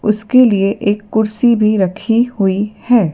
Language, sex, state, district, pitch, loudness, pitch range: Hindi, female, Madhya Pradesh, Dhar, 215 Hz, -14 LUFS, 200-235 Hz